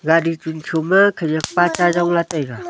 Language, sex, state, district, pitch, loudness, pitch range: Wancho, female, Arunachal Pradesh, Longding, 165 Hz, -17 LUFS, 160-175 Hz